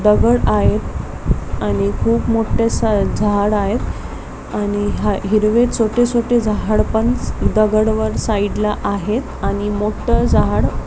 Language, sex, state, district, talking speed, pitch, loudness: Marathi, female, Maharashtra, Pune, 130 wpm, 205 Hz, -17 LUFS